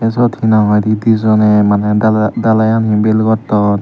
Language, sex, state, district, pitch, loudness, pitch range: Chakma, male, Tripura, Dhalai, 110 Hz, -12 LUFS, 105-110 Hz